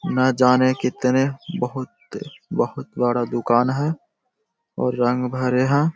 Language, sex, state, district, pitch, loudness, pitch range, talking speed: Hindi, male, Bihar, Jahanabad, 130 Hz, -21 LUFS, 125-135 Hz, 110 wpm